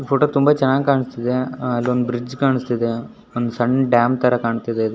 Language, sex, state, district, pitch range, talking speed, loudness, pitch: Kannada, male, Karnataka, Shimoga, 120-130 Hz, 155 wpm, -19 LUFS, 125 Hz